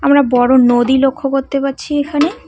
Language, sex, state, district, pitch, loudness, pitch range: Bengali, female, West Bengal, Cooch Behar, 275 Hz, -13 LUFS, 260-285 Hz